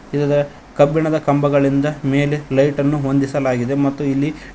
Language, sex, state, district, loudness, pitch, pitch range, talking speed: Kannada, male, Karnataka, Koppal, -17 LUFS, 145 Hz, 140-145 Hz, 120 wpm